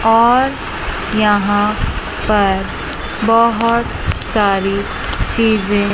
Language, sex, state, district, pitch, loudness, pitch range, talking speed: Hindi, female, Chandigarh, Chandigarh, 215 Hz, -15 LUFS, 205-230 Hz, 60 wpm